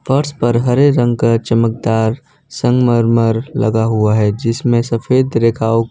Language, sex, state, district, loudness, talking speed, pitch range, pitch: Hindi, male, Gujarat, Valsad, -14 LUFS, 130 wpm, 115-125 Hz, 115 Hz